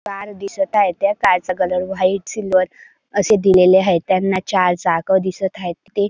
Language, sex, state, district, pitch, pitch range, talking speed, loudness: Marathi, male, Maharashtra, Dhule, 190 Hz, 185-205 Hz, 165 wpm, -17 LUFS